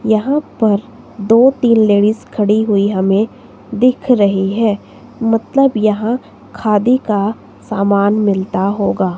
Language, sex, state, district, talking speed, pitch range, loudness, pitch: Hindi, female, Himachal Pradesh, Shimla, 120 wpm, 200-235 Hz, -14 LUFS, 215 Hz